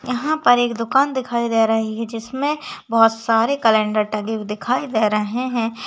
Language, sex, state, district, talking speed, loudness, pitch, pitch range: Hindi, female, Maharashtra, Pune, 185 wpm, -19 LUFS, 230 Hz, 220-255 Hz